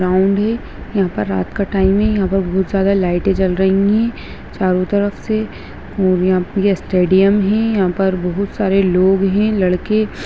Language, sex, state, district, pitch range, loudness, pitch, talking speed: Hindi, female, Bihar, Begusarai, 185-200 Hz, -16 LUFS, 195 Hz, 180 wpm